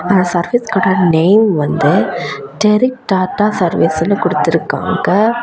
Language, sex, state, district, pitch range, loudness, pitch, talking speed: Tamil, female, Tamil Nadu, Kanyakumari, 180-215 Hz, -13 LUFS, 195 Hz, 110 wpm